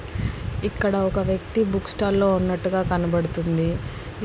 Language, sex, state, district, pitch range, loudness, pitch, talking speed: Telugu, female, Andhra Pradesh, Guntur, 125-190 Hz, -23 LUFS, 175 Hz, 115 wpm